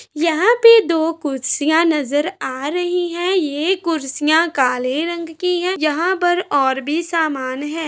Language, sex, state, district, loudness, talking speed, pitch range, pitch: Hindi, female, Chhattisgarh, Raigarh, -17 LUFS, 150 wpm, 290-350 Hz, 325 Hz